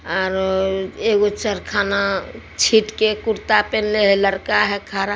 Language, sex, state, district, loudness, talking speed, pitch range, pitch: Hindi, female, Bihar, Supaul, -18 LUFS, 175 wpm, 195-215 Hz, 200 Hz